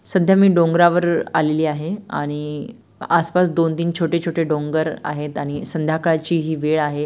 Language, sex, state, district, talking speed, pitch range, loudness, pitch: Marathi, female, Maharashtra, Dhule, 155 wpm, 150-170 Hz, -19 LUFS, 165 Hz